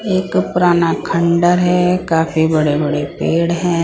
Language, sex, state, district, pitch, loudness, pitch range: Hindi, female, Punjab, Pathankot, 170 Hz, -15 LUFS, 160-180 Hz